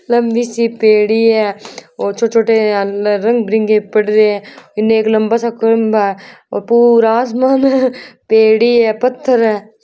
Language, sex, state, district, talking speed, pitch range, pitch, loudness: Marwari, female, Rajasthan, Churu, 135 wpm, 215-235 Hz, 225 Hz, -13 LUFS